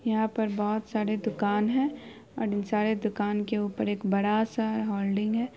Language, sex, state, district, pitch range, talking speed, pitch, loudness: Hindi, female, Bihar, Araria, 205-220 Hz, 185 wpm, 215 Hz, -28 LUFS